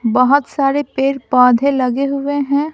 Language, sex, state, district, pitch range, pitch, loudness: Hindi, female, Bihar, Patna, 255-280 Hz, 275 Hz, -15 LUFS